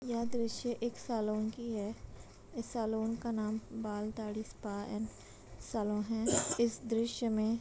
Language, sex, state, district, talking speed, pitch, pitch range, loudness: Hindi, female, Uttar Pradesh, Etah, 165 wpm, 225 Hz, 215-235 Hz, -36 LUFS